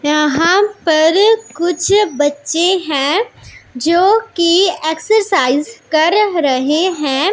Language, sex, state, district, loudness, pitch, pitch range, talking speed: Hindi, female, Punjab, Pathankot, -13 LUFS, 340 Hz, 300-400 Hz, 80 wpm